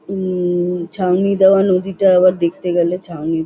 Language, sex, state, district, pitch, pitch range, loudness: Bengali, female, West Bengal, North 24 Parganas, 180 Hz, 175-190 Hz, -16 LUFS